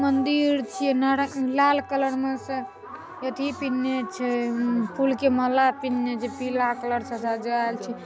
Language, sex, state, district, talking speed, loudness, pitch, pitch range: Maithili, female, Bihar, Saharsa, 150 wpm, -25 LUFS, 260 Hz, 240-270 Hz